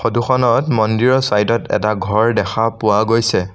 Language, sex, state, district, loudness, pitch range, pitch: Assamese, male, Assam, Sonitpur, -15 LUFS, 105-120 Hz, 115 Hz